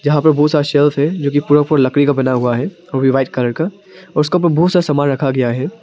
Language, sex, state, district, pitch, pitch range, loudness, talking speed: Hindi, male, Arunachal Pradesh, Papum Pare, 145 Hz, 135-155 Hz, -15 LUFS, 300 wpm